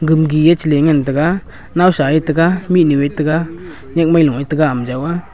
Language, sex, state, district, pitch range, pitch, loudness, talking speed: Wancho, male, Arunachal Pradesh, Longding, 145-170 Hz, 155 Hz, -14 LUFS, 155 wpm